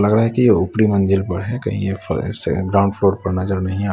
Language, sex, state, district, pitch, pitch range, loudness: Hindi, male, Bihar, West Champaran, 100 Hz, 95-105 Hz, -18 LUFS